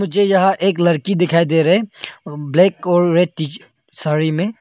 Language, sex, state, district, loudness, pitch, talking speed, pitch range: Hindi, male, Arunachal Pradesh, Longding, -16 LUFS, 175 Hz, 170 wpm, 165-195 Hz